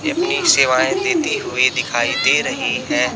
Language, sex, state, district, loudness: Hindi, male, Chhattisgarh, Raipur, -16 LUFS